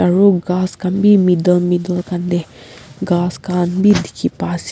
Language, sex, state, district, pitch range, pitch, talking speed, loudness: Nagamese, female, Nagaland, Kohima, 175-185 Hz, 180 Hz, 165 wpm, -15 LUFS